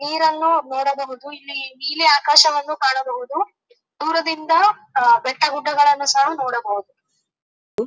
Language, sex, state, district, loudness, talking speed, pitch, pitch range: Kannada, female, Karnataka, Dharwad, -18 LUFS, 85 wpm, 295 Hz, 270-325 Hz